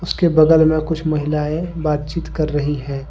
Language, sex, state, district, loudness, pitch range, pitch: Hindi, male, Jharkhand, Deoghar, -18 LUFS, 150-165 Hz, 155 Hz